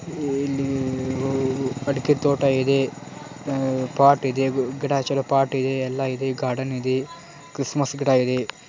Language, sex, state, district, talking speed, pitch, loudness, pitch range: Kannada, male, Karnataka, Dharwad, 125 wpm, 135 Hz, -23 LUFS, 130-140 Hz